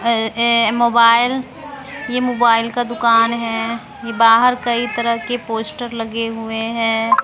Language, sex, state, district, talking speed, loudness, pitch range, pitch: Hindi, female, Bihar, West Champaran, 130 wpm, -16 LUFS, 230-245 Hz, 235 Hz